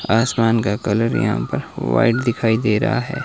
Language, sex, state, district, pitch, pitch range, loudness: Hindi, male, Himachal Pradesh, Shimla, 115 Hz, 110-120 Hz, -18 LUFS